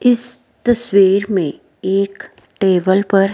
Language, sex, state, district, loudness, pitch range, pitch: Hindi, female, Himachal Pradesh, Shimla, -16 LUFS, 195-235 Hz, 195 Hz